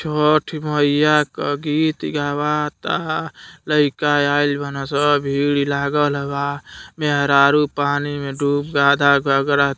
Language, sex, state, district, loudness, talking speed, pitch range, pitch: Hindi, male, Uttar Pradesh, Deoria, -18 LUFS, 115 wpm, 140-150 Hz, 145 Hz